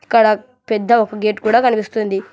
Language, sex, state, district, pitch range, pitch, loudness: Telugu, male, Telangana, Hyderabad, 215-235 Hz, 220 Hz, -16 LUFS